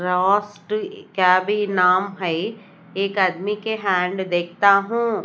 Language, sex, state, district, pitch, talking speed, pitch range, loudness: Hindi, female, Odisha, Nuapada, 195 Hz, 90 wpm, 180-205 Hz, -20 LUFS